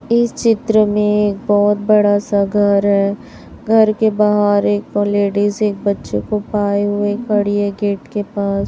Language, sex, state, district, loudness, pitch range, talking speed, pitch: Hindi, male, Chhattisgarh, Raipur, -15 LUFS, 205-210 Hz, 160 wpm, 205 Hz